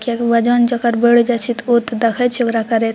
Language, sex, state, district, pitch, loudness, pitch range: Maithili, female, Bihar, Purnia, 235 Hz, -15 LUFS, 230-240 Hz